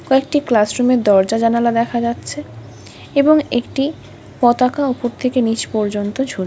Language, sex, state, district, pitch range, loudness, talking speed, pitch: Bengali, female, West Bengal, Kolkata, 205-260 Hz, -16 LUFS, 150 wpm, 235 Hz